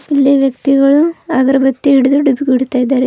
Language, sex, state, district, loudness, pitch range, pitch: Kannada, female, Karnataka, Bidar, -12 LUFS, 265-280 Hz, 270 Hz